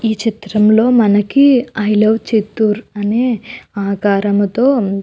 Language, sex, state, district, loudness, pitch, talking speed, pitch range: Telugu, female, Andhra Pradesh, Chittoor, -14 LUFS, 215 Hz, 120 wpm, 205-235 Hz